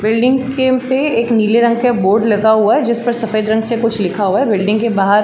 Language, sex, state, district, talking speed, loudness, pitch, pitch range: Hindi, female, Uttar Pradesh, Jalaun, 265 wpm, -14 LUFS, 225 Hz, 210-240 Hz